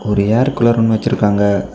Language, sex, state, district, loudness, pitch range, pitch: Tamil, male, Tamil Nadu, Kanyakumari, -14 LUFS, 100-120 Hz, 110 Hz